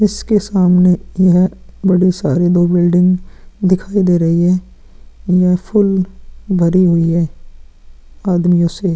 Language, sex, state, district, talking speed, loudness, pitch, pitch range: Hindi, male, Bihar, Vaishali, 120 wpm, -14 LUFS, 180 Hz, 175-185 Hz